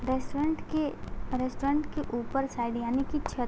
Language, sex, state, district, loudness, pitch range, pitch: Hindi, female, Uttar Pradesh, Gorakhpur, -31 LUFS, 250-295 Hz, 270 Hz